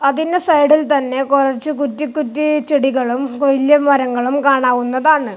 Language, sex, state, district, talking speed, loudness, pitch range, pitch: Malayalam, male, Kerala, Kasaragod, 100 wpm, -15 LUFS, 265-300 Hz, 280 Hz